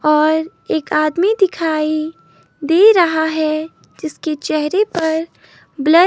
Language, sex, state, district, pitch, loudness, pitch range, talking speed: Hindi, female, Himachal Pradesh, Shimla, 320 Hz, -16 LUFS, 310-335 Hz, 110 wpm